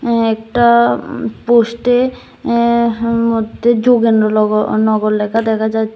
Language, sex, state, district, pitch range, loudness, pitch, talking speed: Bengali, female, Tripura, West Tripura, 220-235 Hz, -14 LUFS, 230 Hz, 130 wpm